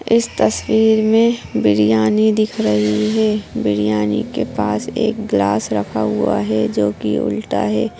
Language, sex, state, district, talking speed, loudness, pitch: Hindi, female, Bihar, Jahanabad, 145 wpm, -17 LUFS, 105 Hz